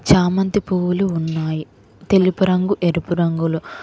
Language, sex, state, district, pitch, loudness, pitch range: Telugu, female, Telangana, Mahabubabad, 180 Hz, -19 LUFS, 160-190 Hz